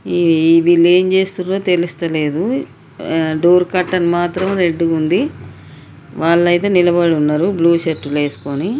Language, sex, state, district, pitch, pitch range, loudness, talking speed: Telugu, female, Telangana, Nalgonda, 170 Hz, 160-180 Hz, -15 LUFS, 135 wpm